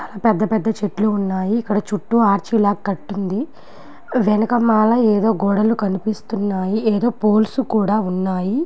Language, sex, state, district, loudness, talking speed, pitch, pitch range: Telugu, female, Andhra Pradesh, Guntur, -18 LUFS, 130 wpm, 215 Hz, 200-225 Hz